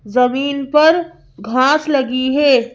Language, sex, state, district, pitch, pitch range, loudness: Hindi, female, Madhya Pradesh, Bhopal, 270 Hz, 255-295 Hz, -15 LUFS